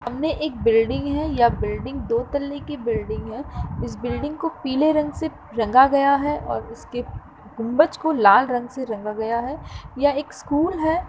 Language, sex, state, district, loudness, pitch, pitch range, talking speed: Hindi, female, Uttar Pradesh, Jalaun, -22 LUFS, 280 Hz, 240-300 Hz, 185 wpm